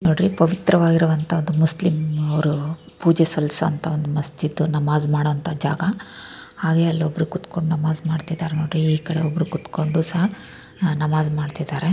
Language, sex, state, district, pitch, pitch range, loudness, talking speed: Kannada, female, Karnataka, Raichur, 160 Hz, 155-165 Hz, -21 LUFS, 135 wpm